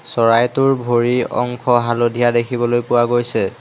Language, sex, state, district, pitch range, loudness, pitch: Assamese, male, Assam, Hailakandi, 120-125 Hz, -16 LUFS, 120 Hz